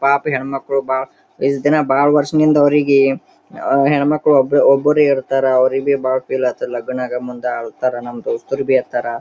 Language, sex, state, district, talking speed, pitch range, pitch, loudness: Kannada, male, Karnataka, Gulbarga, 150 wpm, 130-140 Hz, 135 Hz, -16 LUFS